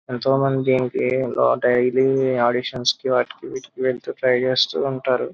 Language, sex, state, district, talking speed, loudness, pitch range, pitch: Telugu, male, Andhra Pradesh, Krishna, 110 wpm, -20 LUFS, 125-135 Hz, 130 Hz